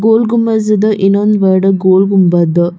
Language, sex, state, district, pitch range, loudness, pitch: Kannada, female, Karnataka, Bijapur, 185-215 Hz, -10 LUFS, 195 Hz